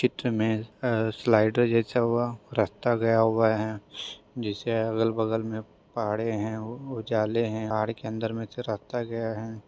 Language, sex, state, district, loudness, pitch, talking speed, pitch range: Hindi, female, Maharashtra, Dhule, -27 LUFS, 110 Hz, 150 wpm, 110-115 Hz